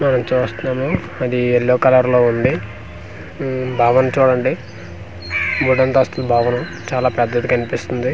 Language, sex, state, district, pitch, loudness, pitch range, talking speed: Telugu, male, Andhra Pradesh, Manyam, 125 Hz, -17 LUFS, 115-130 Hz, 120 wpm